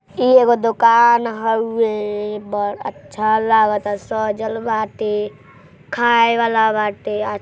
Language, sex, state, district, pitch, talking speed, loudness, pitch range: Hindi, female, Uttar Pradesh, Gorakhpur, 215 Hz, 115 wpm, -17 LUFS, 210-230 Hz